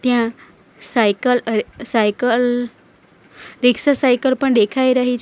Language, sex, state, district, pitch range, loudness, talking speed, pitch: Gujarati, female, Gujarat, Valsad, 230-255 Hz, -17 LUFS, 105 wpm, 245 Hz